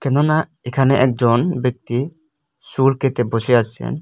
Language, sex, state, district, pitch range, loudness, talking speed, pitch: Bengali, male, Tripura, West Tripura, 120-150 Hz, -18 LUFS, 105 wpm, 135 Hz